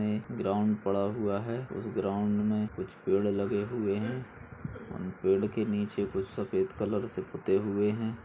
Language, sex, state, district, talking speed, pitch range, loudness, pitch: Hindi, male, Uttar Pradesh, Budaun, 180 wpm, 100-110 Hz, -31 LUFS, 105 Hz